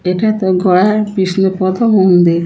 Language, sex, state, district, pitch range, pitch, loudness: Bengali, female, West Bengal, Kolkata, 180-205 Hz, 190 Hz, -12 LUFS